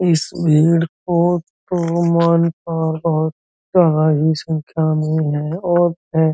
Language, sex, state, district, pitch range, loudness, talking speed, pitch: Hindi, male, Uttar Pradesh, Muzaffarnagar, 155-170 Hz, -17 LUFS, 75 wpm, 165 Hz